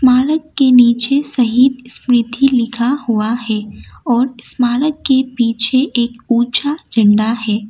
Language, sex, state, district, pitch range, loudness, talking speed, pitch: Hindi, female, Assam, Kamrup Metropolitan, 235-265 Hz, -14 LUFS, 125 wpm, 245 Hz